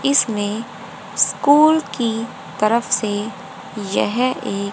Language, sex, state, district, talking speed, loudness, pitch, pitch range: Hindi, female, Haryana, Rohtak, 90 wpm, -18 LUFS, 225 Hz, 205-255 Hz